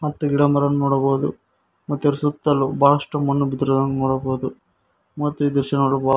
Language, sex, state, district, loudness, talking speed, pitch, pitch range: Kannada, male, Karnataka, Koppal, -20 LUFS, 165 wpm, 140 Hz, 135-145 Hz